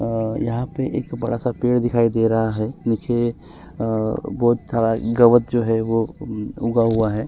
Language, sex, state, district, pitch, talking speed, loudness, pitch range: Hindi, male, Chhattisgarh, Kabirdham, 115 Hz, 190 wpm, -20 LUFS, 115-120 Hz